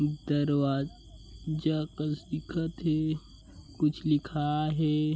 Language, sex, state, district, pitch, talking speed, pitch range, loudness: Chhattisgarhi, male, Chhattisgarh, Bilaspur, 150 Hz, 95 wpm, 140-155 Hz, -30 LUFS